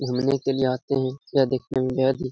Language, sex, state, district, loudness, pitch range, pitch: Hindi, male, Uttar Pradesh, Etah, -24 LUFS, 130-135 Hz, 130 Hz